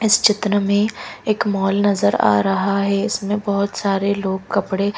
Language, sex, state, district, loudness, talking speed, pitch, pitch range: Hindi, female, Madhya Pradesh, Bhopal, -18 LUFS, 170 wpm, 200 Hz, 195-205 Hz